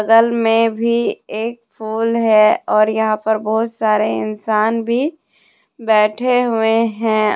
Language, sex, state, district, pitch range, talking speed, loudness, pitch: Hindi, female, Jharkhand, Deoghar, 215-230 Hz, 130 wpm, -16 LUFS, 225 Hz